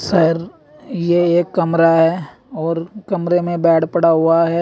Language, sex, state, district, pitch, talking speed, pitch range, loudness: Hindi, male, Uttar Pradesh, Saharanpur, 170 Hz, 155 wpm, 165-175 Hz, -16 LUFS